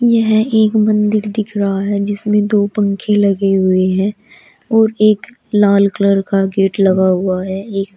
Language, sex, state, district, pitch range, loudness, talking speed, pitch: Hindi, female, Uttar Pradesh, Shamli, 195-215 Hz, -14 LUFS, 160 wpm, 205 Hz